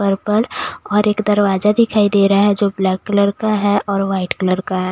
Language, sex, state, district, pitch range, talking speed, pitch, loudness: Hindi, female, Bihar, West Champaran, 195-210 Hz, 230 wpm, 200 Hz, -16 LUFS